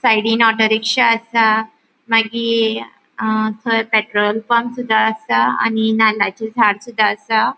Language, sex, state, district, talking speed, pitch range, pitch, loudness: Konkani, female, Goa, North and South Goa, 110 wpm, 220-230 Hz, 220 Hz, -16 LUFS